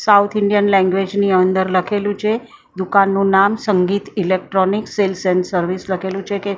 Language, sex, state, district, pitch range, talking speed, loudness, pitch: Gujarati, female, Maharashtra, Mumbai Suburban, 185-205 Hz, 155 wpm, -17 LUFS, 195 Hz